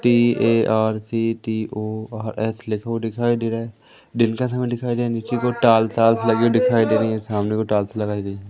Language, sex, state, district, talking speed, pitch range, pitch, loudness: Hindi, male, Madhya Pradesh, Umaria, 210 wpm, 110-120 Hz, 115 Hz, -20 LUFS